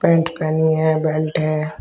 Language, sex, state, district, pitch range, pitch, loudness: Hindi, male, Uttar Pradesh, Shamli, 155-160 Hz, 155 Hz, -19 LUFS